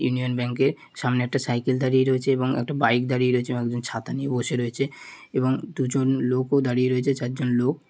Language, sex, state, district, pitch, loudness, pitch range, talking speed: Bengali, male, West Bengal, Malda, 130 Hz, -24 LUFS, 125-135 Hz, 190 wpm